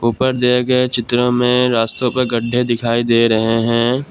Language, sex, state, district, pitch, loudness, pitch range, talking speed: Hindi, male, Assam, Kamrup Metropolitan, 120 Hz, -15 LUFS, 115-125 Hz, 175 wpm